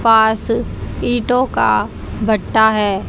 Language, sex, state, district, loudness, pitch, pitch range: Hindi, female, Haryana, Jhajjar, -16 LUFS, 225 Hz, 220-240 Hz